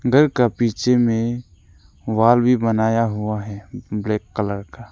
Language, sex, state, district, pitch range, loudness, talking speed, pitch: Hindi, male, Arunachal Pradesh, Lower Dibang Valley, 105-120 Hz, -19 LUFS, 145 wpm, 115 Hz